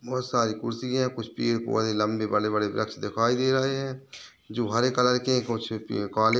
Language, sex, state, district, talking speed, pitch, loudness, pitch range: Hindi, male, Chhattisgarh, Balrampur, 190 wpm, 115 Hz, -26 LUFS, 110-125 Hz